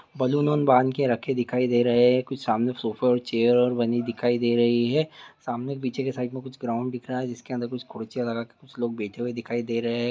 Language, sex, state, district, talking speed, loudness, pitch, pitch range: Hindi, male, Chhattisgarh, Bastar, 255 wpm, -25 LUFS, 120 Hz, 120-130 Hz